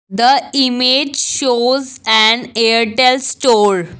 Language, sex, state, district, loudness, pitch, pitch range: English, female, Assam, Kamrup Metropolitan, -12 LUFS, 250 Hz, 225-265 Hz